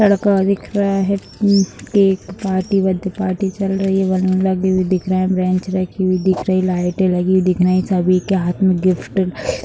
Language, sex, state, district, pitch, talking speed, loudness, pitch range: Hindi, female, Bihar, Sitamarhi, 190 Hz, 220 wpm, -17 LUFS, 185-195 Hz